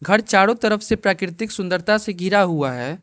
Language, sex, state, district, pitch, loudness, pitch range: Hindi, male, Arunachal Pradesh, Lower Dibang Valley, 195 Hz, -19 LUFS, 185-215 Hz